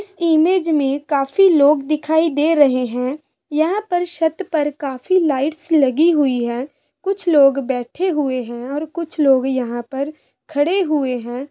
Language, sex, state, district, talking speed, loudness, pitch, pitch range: Hindi, female, Bihar, Samastipur, 160 wpm, -18 LUFS, 295 Hz, 270-325 Hz